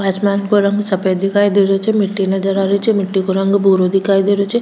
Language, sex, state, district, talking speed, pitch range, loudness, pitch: Rajasthani, female, Rajasthan, Churu, 245 wpm, 195-200 Hz, -15 LUFS, 195 Hz